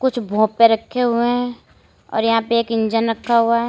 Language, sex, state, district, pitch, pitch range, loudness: Hindi, female, Uttar Pradesh, Lalitpur, 230 Hz, 225-240 Hz, -18 LUFS